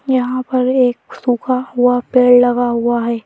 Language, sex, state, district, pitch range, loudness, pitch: Hindi, female, Madhya Pradesh, Bhopal, 245-255 Hz, -14 LUFS, 245 Hz